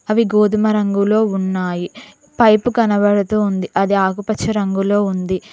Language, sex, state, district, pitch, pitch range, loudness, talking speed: Telugu, female, Telangana, Mahabubabad, 205 Hz, 195-215 Hz, -16 LUFS, 120 wpm